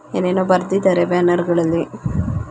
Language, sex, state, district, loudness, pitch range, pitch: Kannada, female, Karnataka, Belgaum, -18 LUFS, 175-185 Hz, 180 Hz